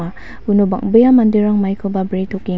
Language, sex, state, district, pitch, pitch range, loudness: Garo, female, Meghalaya, West Garo Hills, 200 Hz, 190-210 Hz, -14 LUFS